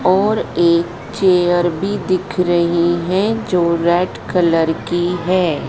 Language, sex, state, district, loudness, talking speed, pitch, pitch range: Hindi, female, Madhya Pradesh, Dhar, -16 LUFS, 115 wpm, 175 Hz, 170-185 Hz